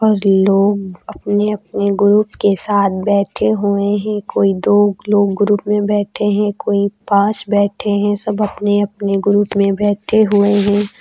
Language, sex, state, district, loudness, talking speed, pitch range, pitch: Hindi, female, Uttar Pradesh, Lucknow, -15 LUFS, 150 wpm, 200-210 Hz, 205 Hz